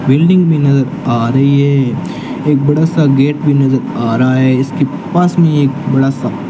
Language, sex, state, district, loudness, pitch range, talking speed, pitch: Hindi, male, Rajasthan, Bikaner, -12 LUFS, 130-150 Hz, 205 wpm, 140 Hz